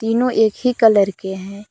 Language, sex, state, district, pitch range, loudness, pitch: Hindi, female, Jharkhand, Palamu, 200-230 Hz, -16 LUFS, 220 Hz